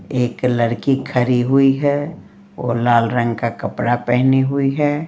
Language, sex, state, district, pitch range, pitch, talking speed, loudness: Hindi, female, Bihar, Patna, 120-135 Hz, 125 Hz, 155 wpm, -17 LUFS